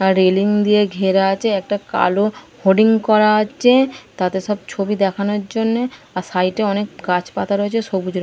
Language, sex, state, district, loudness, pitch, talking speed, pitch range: Bengali, female, West Bengal, Dakshin Dinajpur, -17 LUFS, 205 Hz, 170 wpm, 190-215 Hz